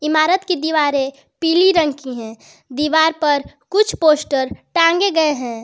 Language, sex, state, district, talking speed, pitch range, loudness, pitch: Hindi, female, Jharkhand, Garhwa, 150 wpm, 275-335 Hz, -16 LUFS, 310 Hz